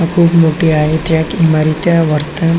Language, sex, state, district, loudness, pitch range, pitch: Marathi, male, Maharashtra, Chandrapur, -12 LUFS, 155-170 Hz, 160 Hz